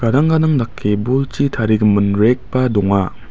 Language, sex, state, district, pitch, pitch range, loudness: Garo, male, Meghalaya, West Garo Hills, 120 Hz, 105-135 Hz, -16 LUFS